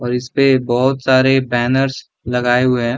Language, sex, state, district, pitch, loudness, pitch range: Hindi, male, Bihar, Sitamarhi, 130 Hz, -15 LUFS, 125-135 Hz